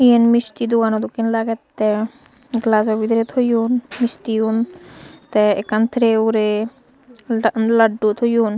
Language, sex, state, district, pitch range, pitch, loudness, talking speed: Chakma, female, Tripura, Unakoti, 220-240 Hz, 230 Hz, -18 LUFS, 120 wpm